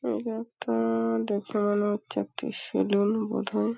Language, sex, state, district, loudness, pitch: Bengali, female, West Bengal, Paschim Medinipur, -28 LUFS, 205 Hz